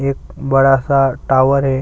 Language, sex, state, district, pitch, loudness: Hindi, male, Chhattisgarh, Sukma, 135 Hz, -14 LUFS